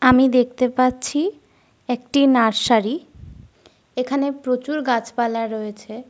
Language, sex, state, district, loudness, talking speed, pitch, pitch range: Bengali, female, Jharkhand, Sahebganj, -20 LUFS, 100 wpm, 250 Hz, 230-270 Hz